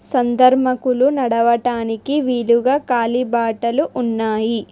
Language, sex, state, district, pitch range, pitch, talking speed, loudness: Telugu, female, Telangana, Hyderabad, 230-255 Hz, 245 Hz, 65 wpm, -17 LUFS